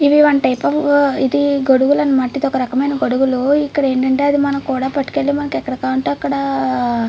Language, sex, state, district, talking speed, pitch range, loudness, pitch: Telugu, female, Andhra Pradesh, Srikakulam, 100 wpm, 255-285 Hz, -16 LUFS, 270 Hz